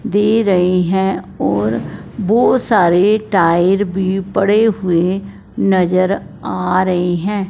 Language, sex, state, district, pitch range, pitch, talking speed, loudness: Hindi, female, Punjab, Fazilka, 180-205 Hz, 190 Hz, 110 wpm, -15 LUFS